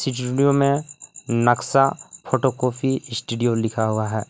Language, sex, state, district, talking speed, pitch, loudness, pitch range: Hindi, male, Jharkhand, Palamu, 140 wpm, 130 Hz, -21 LUFS, 115-140 Hz